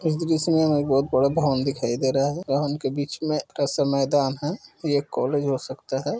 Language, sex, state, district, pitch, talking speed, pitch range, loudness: Hindi, male, Uttar Pradesh, Budaun, 145 Hz, 240 wpm, 135-150 Hz, -24 LUFS